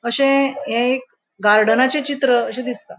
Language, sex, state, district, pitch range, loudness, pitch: Konkani, female, Goa, North and South Goa, 235-275 Hz, -17 LUFS, 255 Hz